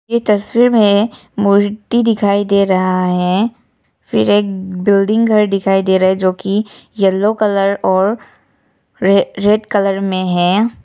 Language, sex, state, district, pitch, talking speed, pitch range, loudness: Hindi, female, Nagaland, Kohima, 200 Hz, 140 wpm, 190-215 Hz, -14 LUFS